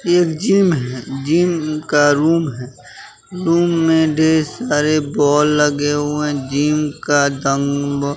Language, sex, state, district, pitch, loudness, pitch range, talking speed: Hindi, male, Bihar, West Champaran, 150 Hz, -16 LUFS, 145-160 Hz, 130 wpm